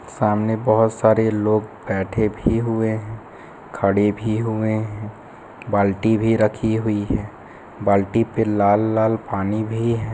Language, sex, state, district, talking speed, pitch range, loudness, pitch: Hindi, male, Chhattisgarh, Bilaspur, 140 wpm, 105-110 Hz, -20 LUFS, 110 Hz